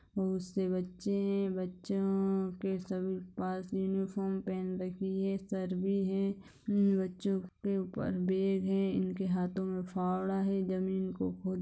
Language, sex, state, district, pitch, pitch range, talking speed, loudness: Hindi, female, Bihar, Gopalganj, 190 Hz, 185-195 Hz, 145 wpm, -34 LUFS